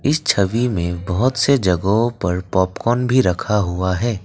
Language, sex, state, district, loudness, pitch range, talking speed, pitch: Hindi, male, Assam, Kamrup Metropolitan, -18 LUFS, 90-125 Hz, 170 wpm, 105 Hz